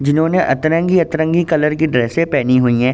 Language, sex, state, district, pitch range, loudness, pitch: Hindi, male, Uttar Pradesh, Ghazipur, 130-165 Hz, -15 LUFS, 155 Hz